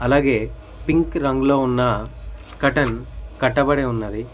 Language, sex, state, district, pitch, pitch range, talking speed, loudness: Telugu, male, Telangana, Mahabubabad, 125 Hz, 110-140 Hz, 95 wpm, -20 LUFS